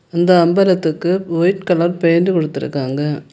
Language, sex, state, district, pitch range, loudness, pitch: Tamil, female, Tamil Nadu, Kanyakumari, 160-180 Hz, -16 LUFS, 170 Hz